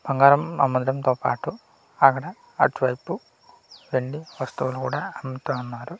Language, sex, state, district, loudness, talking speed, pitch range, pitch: Telugu, male, Andhra Pradesh, Manyam, -24 LUFS, 90 wpm, 130-150 Hz, 135 Hz